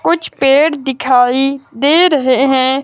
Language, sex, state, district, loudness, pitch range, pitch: Hindi, female, Himachal Pradesh, Shimla, -12 LUFS, 260-290 Hz, 270 Hz